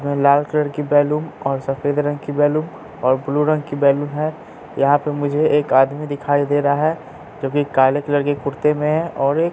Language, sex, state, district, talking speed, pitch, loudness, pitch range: Hindi, male, Bihar, Katihar, 215 wpm, 145 Hz, -18 LUFS, 140-150 Hz